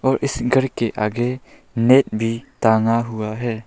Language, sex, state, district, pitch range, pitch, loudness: Hindi, male, Arunachal Pradesh, Lower Dibang Valley, 110-130 Hz, 115 Hz, -19 LUFS